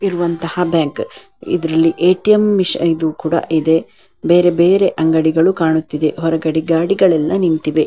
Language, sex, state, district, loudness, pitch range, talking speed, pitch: Kannada, female, Karnataka, Dakshina Kannada, -15 LUFS, 160-180 Hz, 120 wpm, 165 Hz